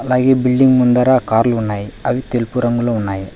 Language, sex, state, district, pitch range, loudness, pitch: Telugu, male, Telangana, Hyderabad, 110-125 Hz, -15 LUFS, 120 Hz